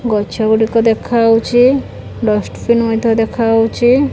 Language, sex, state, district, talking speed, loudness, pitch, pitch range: Odia, female, Odisha, Khordha, 115 wpm, -13 LUFS, 225 Hz, 220-235 Hz